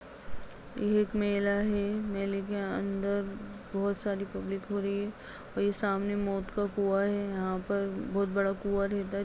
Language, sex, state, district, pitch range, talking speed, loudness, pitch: Hindi, female, Bihar, Begusarai, 195-205 Hz, 170 wpm, -32 LUFS, 200 Hz